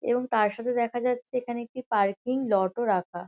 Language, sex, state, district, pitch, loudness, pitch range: Bengali, female, West Bengal, Kolkata, 235 Hz, -27 LUFS, 205-250 Hz